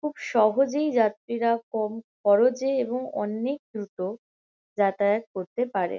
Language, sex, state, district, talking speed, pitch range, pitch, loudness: Bengali, female, West Bengal, Kolkata, 110 wpm, 205-255 Hz, 225 Hz, -26 LUFS